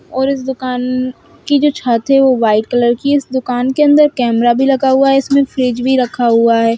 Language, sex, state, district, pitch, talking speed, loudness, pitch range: Hindi, female, Bihar, Gaya, 255 Hz, 240 wpm, -13 LUFS, 245-275 Hz